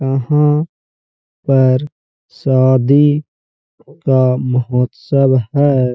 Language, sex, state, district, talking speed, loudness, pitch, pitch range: Hindi, male, Uttar Pradesh, Jalaun, 60 wpm, -14 LUFS, 135 Hz, 125-145 Hz